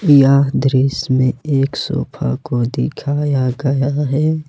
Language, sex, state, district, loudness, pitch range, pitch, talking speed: Hindi, male, Jharkhand, Ranchi, -16 LUFS, 130-145 Hz, 135 Hz, 120 wpm